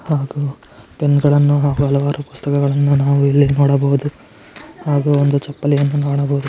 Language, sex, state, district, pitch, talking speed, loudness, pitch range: Kannada, male, Karnataka, Chamarajanagar, 140 Hz, 110 wpm, -16 LUFS, 140-145 Hz